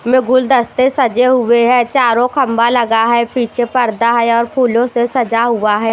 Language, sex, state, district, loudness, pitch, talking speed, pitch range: Hindi, female, Bihar, West Champaran, -13 LUFS, 240 Hz, 180 wpm, 235-255 Hz